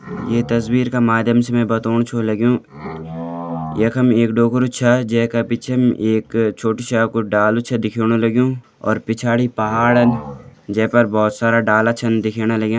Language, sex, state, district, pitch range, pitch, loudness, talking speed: Garhwali, male, Uttarakhand, Uttarkashi, 110-120 Hz, 115 Hz, -17 LUFS, 165 wpm